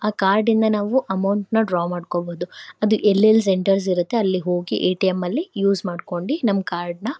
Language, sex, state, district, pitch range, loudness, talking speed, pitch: Kannada, female, Karnataka, Shimoga, 180-215 Hz, -20 LUFS, 165 wpm, 195 Hz